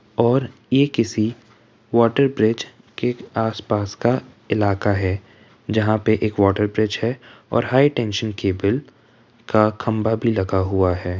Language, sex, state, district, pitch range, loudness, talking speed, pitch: Hindi, male, Uttar Pradesh, Jyotiba Phule Nagar, 105-115 Hz, -20 LUFS, 145 wpm, 110 Hz